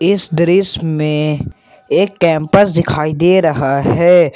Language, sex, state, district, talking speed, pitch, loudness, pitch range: Hindi, male, Jharkhand, Ranchi, 125 wpm, 165 Hz, -13 LUFS, 150-180 Hz